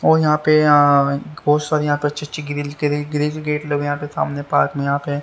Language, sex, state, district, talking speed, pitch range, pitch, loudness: Hindi, male, Haryana, Rohtak, 220 wpm, 145-150 Hz, 145 Hz, -18 LUFS